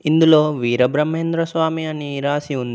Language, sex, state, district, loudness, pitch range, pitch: Telugu, male, Telangana, Komaram Bheem, -18 LUFS, 140-160 Hz, 150 Hz